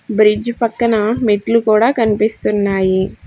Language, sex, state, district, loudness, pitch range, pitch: Telugu, female, Telangana, Hyderabad, -15 LUFS, 210-230 Hz, 215 Hz